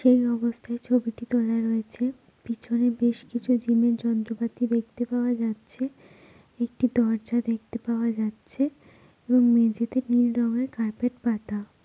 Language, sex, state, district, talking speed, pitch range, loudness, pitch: Bengali, female, West Bengal, Purulia, 125 wpm, 230-245 Hz, -26 LUFS, 235 Hz